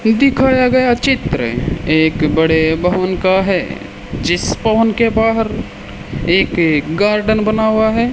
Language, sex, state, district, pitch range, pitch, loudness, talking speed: Hindi, male, Rajasthan, Bikaner, 175-230 Hz, 220 Hz, -14 LUFS, 125 wpm